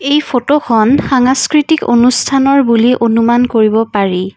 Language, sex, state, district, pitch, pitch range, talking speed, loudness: Assamese, female, Assam, Kamrup Metropolitan, 250 Hz, 230-275 Hz, 110 wpm, -11 LUFS